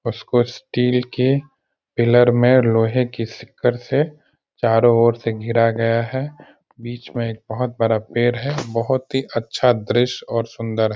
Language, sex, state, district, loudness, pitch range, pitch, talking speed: Hindi, male, Bihar, Sitamarhi, -19 LUFS, 115-125 Hz, 120 Hz, 160 wpm